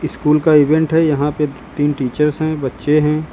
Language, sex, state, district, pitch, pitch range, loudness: Hindi, female, Uttar Pradesh, Lucknow, 150 Hz, 145-155 Hz, -16 LUFS